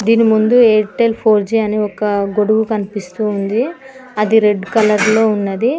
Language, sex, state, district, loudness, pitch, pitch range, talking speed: Telugu, female, Telangana, Mahabubabad, -14 LUFS, 215 Hz, 210-225 Hz, 145 wpm